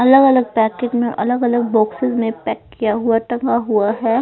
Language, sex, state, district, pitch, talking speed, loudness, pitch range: Hindi, male, Punjab, Pathankot, 235 Hz, 155 wpm, -17 LUFS, 225-245 Hz